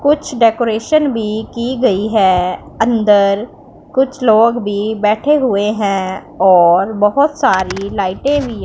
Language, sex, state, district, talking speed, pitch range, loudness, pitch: Hindi, female, Punjab, Pathankot, 125 wpm, 200-255 Hz, -14 LUFS, 220 Hz